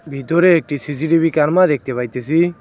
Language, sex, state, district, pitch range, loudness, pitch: Bengali, male, West Bengal, Cooch Behar, 140-170 Hz, -16 LUFS, 155 Hz